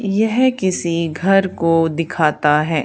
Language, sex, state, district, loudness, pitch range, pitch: Hindi, female, Haryana, Charkhi Dadri, -17 LUFS, 160-195 Hz, 170 Hz